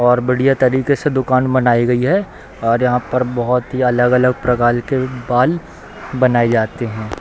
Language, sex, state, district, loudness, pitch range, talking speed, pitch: Hindi, male, Bihar, Darbhanga, -16 LUFS, 120-130 Hz, 165 wpm, 125 Hz